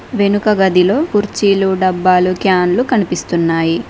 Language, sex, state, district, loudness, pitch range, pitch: Telugu, female, Telangana, Mahabubabad, -13 LUFS, 180-205 Hz, 190 Hz